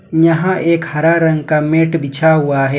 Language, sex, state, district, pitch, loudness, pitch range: Hindi, male, Jharkhand, Ranchi, 160 Hz, -13 LUFS, 150-165 Hz